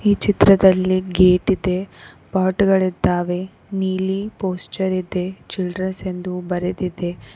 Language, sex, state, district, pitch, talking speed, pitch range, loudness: Kannada, female, Karnataka, Koppal, 185 Hz, 100 wpm, 180-190 Hz, -19 LUFS